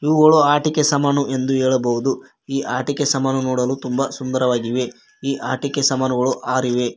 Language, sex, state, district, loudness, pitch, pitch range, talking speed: Kannada, male, Karnataka, Koppal, -19 LUFS, 135 Hz, 130-140 Hz, 140 wpm